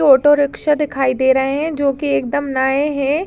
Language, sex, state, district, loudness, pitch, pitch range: Hindi, female, Maharashtra, Aurangabad, -16 LUFS, 280 Hz, 265-290 Hz